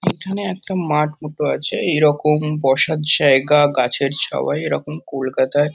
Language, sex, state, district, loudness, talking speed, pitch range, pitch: Bengali, male, West Bengal, Kolkata, -17 LUFS, 135 wpm, 140-155 Hz, 150 Hz